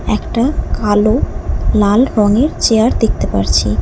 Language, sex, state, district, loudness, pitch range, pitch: Bengali, female, West Bengal, Alipurduar, -14 LUFS, 205-235 Hz, 215 Hz